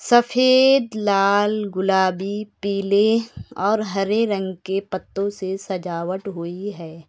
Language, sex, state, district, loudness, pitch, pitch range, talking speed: Hindi, male, Uttar Pradesh, Lucknow, -21 LUFS, 200 Hz, 190-215 Hz, 110 wpm